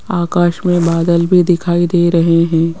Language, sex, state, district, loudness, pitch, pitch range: Hindi, female, Rajasthan, Jaipur, -13 LUFS, 175 Hz, 170-175 Hz